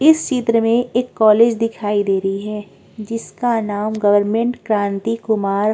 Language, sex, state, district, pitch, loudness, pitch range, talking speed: Hindi, female, Chhattisgarh, Korba, 220 Hz, -17 LUFS, 205-230 Hz, 155 wpm